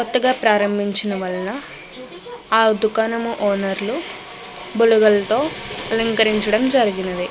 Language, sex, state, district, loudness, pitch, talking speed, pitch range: Telugu, female, Andhra Pradesh, Krishna, -18 LUFS, 215 Hz, 75 wpm, 200-230 Hz